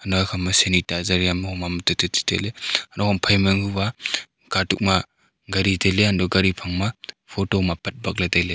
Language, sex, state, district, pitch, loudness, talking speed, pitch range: Wancho, male, Arunachal Pradesh, Longding, 95 Hz, -21 LUFS, 170 wpm, 90-100 Hz